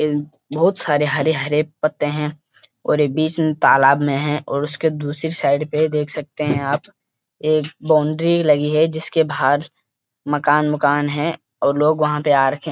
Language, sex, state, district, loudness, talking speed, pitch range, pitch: Hindi, male, Uttarakhand, Uttarkashi, -18 LUFS, 165 wpm, 145-155 Hz, 150 Hz